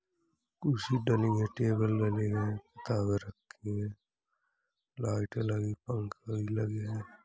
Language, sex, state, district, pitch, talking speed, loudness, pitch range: Hindi, male, Uttar Pradesh, Hamirpur, 110 Hz, 110 wpm, -33 LUFS, 105-125 Hz